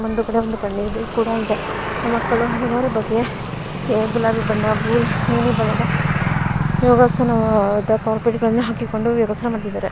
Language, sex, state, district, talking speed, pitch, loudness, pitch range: Kannada, female, Karnataka, Mysore, 90 wpm, 225 Hz, -19 LUFS, 210-230 Hz